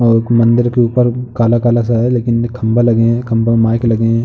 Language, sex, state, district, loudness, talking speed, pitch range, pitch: Hindi, male, Uttar Pradesh, Jalaun, -13 LUFS, 225 wpm, 115-120 Hz, 115 Hz